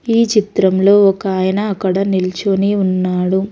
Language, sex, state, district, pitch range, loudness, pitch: Telugu, female, Telangana, Hyderabad, 185-205 Hz, -14 LUFS, 195 Hz